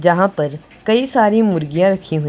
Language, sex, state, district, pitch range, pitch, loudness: Hindi, male, Punjab, Pathankot, 155-215 Hz, 185 Hz, -16 LUFS